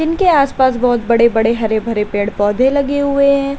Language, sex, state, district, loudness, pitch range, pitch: Hindi, female, Uttar Pradesh, Lalitpur, -14 LUFS, 225-280 Hz, 250 Hz